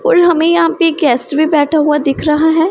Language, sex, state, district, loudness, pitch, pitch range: Hindi, female, Punjab, Pathankot, -12 LUFS, 315 Hz, 300-335 Hz